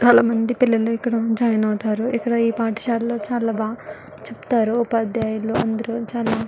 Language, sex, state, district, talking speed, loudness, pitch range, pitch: Telugu, female, Andhra Pradesh, Guntur, 130 wpm, -21 LUFS, 225-235 Hz, 230 Hz